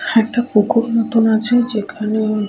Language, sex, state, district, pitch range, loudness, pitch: Bengali, female, West Bengal, Paschim Medinipur, 215-235 Hz, -16 LUFS, 225 Hz